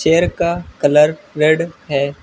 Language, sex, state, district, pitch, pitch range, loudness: Hindi, female, West Bengal, Alipurduar, 155 Hz, 150-170 Hz, -16 LUFS